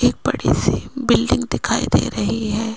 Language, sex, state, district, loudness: Hindi, female, Rajasthan, Jaipur, -19 LUFS